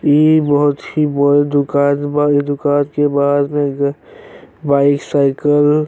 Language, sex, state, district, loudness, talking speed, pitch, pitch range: Bhojpuri, male, Uttar Pradesh, Gorakhpur, -14 LUFS, 110 wpm, 145 Hz, 140-145 Hz